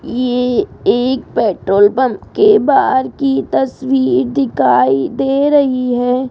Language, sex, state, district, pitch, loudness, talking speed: Hindi, female, Rajasthan, Jaipur, 245 Hz, -14 LUFS, 115 wpm